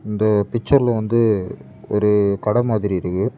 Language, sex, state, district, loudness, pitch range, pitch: Tamil, male, Tamil Nadu, Kanyakumari, -18 LUFS, 100-115 Hz, 105 Hz